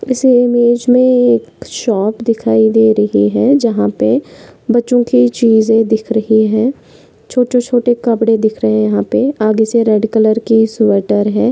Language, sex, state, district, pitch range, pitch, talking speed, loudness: Hindi, female, Maharashtra, Pune, 215-245 Hz, 225 Hz, 165 wpm, -12 LUFS